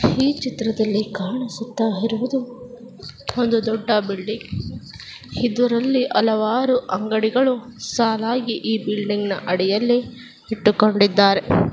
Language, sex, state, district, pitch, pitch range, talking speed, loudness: Kannada, female, Karnataka, Dakshina Kannada, 225 Hz, 210-245 Hz, 55 wpm, -20 LUFS